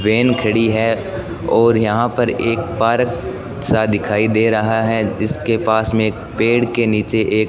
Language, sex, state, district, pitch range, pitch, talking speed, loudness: Hindi, male, Rajasthan, Bikaner, 110-120 Hz, 110 Hz, 160 wpm, -16 LUFS